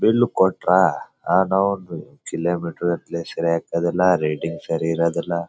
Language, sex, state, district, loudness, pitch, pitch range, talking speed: Kannada, male, Karnataka, Bellary, -21 LUFS, 85 Hz, 85-90 Hz, 110 wpm